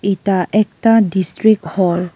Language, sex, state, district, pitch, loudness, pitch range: Bengali, female, Tripura, West Tripura, 190 Hz, -15 LUFS, 180-215 Hz